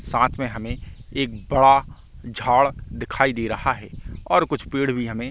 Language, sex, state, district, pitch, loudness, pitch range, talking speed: Hindi, male, Chhattisgarh, Bastar, 125 Hz, -21 LUFS, 115-135 Hz, 170 wpm